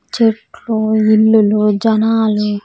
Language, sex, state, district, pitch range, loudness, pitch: Telugu, female, Andhra Pradesh, Sri Satya Sai, 210-225 Hz, -13 LUFS, 220 Hz